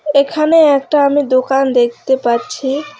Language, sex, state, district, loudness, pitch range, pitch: Bengali, female, West Bengal, Alipurduar, -13 LUFS, 255-295 Hz, 280 Hz